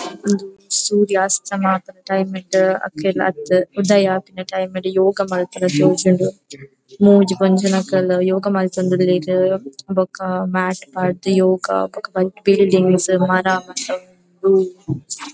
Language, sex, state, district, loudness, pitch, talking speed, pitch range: Tulu, female, Karnataka, Dakshina Kannada, -17 LUFS, 185 Hz, 105 wpm, 185-195 Hz